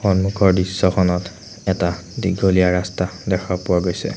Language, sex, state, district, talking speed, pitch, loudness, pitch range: Assamese, male, Assam, Sonitpur, 115 wpm, 95 Hz, -19 LUFS, 90-95 Hz